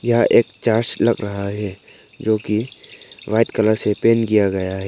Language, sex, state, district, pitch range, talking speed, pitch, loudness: Hindi, male, Arunachal Pradesh, Papum Pare, 100-115 Hz, 170 wpm, 110 Hz, -19 LUFS